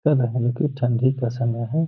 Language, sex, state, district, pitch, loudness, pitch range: Hindi, male, Bihar, Gaya, 125 Hz, -22 LUFS, 120-145 Hz